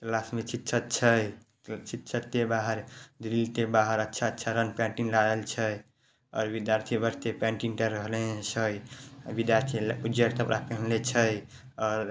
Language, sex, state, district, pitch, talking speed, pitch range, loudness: Maithili, male, Bihar, Samastipur, 115 Hz, 150 wpm, 110-120 Hz, -29 LUFS